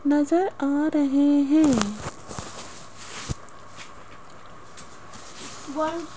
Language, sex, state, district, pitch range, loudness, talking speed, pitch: Hindi, female, Rajasthan, Jaipur, 280-310 Hz, -23 LUFS, 40 wpm, 295 Hz